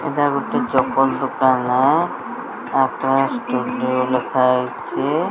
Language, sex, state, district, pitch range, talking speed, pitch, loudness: Odia, female, Odisha, Sambalpur, 125-135 Hz, 80 wpm, 130 Hz, -19 LUFS